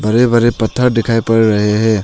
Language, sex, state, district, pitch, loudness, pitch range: Hindi, male, Arunachal Pradesh, Longding, 115 Hz, -13 LUFS, 110-120 Hz